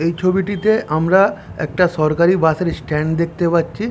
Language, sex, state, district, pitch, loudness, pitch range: Bengali, male, West Bengal, Jhargram, 170 Hz, -17 LUFS, 160-190 Hz